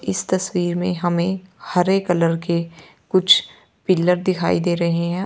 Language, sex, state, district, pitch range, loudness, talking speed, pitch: Hindi, female, Uttar Pradesh, Lalitpur, 170-185 Hz, -19 LUFS, 150 wpm, 175 Hz